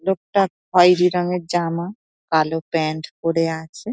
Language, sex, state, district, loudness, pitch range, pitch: Bengali, female, West Bengal, Dakshin Dinajpur, -20 LUFS, 160-180 Hz, 170 Hz